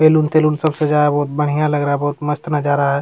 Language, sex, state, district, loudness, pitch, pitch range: Hindi, male, Bihar, Jamui, -17 LUFS, 150 Hz, 145-155 Hz